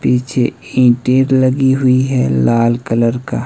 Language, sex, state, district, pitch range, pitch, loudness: Hindi, male, Himachal Pradesh, Shimla, 115-130 Hz, 125 Hz, -13 LUFS